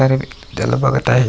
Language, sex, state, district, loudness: Marathi, male, Maharashtra, Aurangabad, -17 LUFS